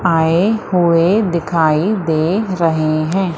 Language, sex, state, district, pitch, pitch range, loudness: Hindi, female, Madhya Pradesh, Umaria, 170 Hz, 160-190 Hz, -15 LUFS